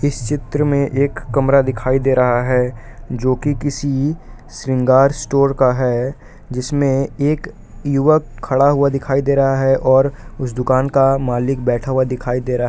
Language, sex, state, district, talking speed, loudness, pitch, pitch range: Hindi, male, Jharkhand, Palamu, 165 wpm, -17 LUFS, 135 Hz, 125-140 Hz